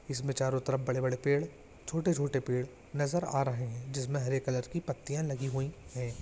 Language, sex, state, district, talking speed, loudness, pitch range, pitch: Hindi, male, Andhra Pradesh, Chittoor, 185 wpm, -33 LUFS, 130-145 Hz, 135 Hz